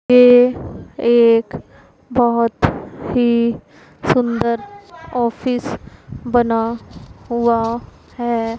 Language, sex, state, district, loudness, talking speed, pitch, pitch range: Hindi, female, Punjab, Pathankot, -17 LUFS, 65 wpm, 235 Hz, 235-245 Hz